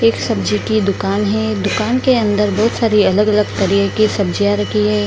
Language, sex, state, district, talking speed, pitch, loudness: Hindi, female, Bihar, Kishanganj, 190 wpm, 205 Hz, -15 LUFS